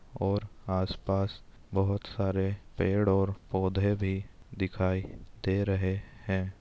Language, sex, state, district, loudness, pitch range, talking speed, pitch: Hindi, male, Bihar, Darbhanga, -31 LUFS, 95-100 Hz, 110 wpm, 95 Hz